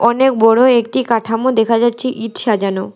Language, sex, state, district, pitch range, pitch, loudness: Bengali, female, West Bengal, Alipurduar, 225-250 Hz, 230 Hz, -14 LUFS